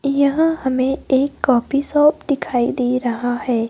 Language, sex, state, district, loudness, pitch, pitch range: Hindi, female, Maharashtra, Gondia, -18 LUFS, 265 Hz, 245-280 Hz